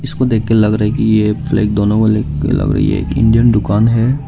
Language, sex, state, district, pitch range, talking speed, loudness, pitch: Hindi, male, Arunachal Pradesh, Lower Dibang Valley, 105-115 Hz, 240 wpm, -13 LUFS, 110 Hz